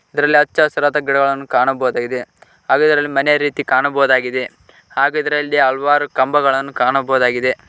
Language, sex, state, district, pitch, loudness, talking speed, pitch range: Kannada, male, Karnataka, Koppal, 140 Hz, -15 LUFS, 110 wpm, 130-145 Hz